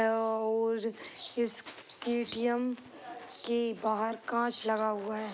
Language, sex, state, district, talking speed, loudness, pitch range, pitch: Hindi, female, Bihar, East Champaran, 100 wpm, -32 LUFS, 220-240 Hz, 225 Hz